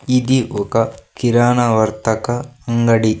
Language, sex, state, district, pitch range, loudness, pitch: Telugu, male, Andhra Pradesh, Sri Satya Sai, 110-125 Hz, -17 LUFS, 115 Hz